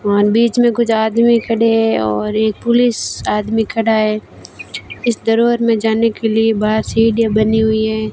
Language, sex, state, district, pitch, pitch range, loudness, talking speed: Hindi, female, Rajasthan, Barmer, 220 Hz, 215-230 Hz, -14 LUFS, 175 wpm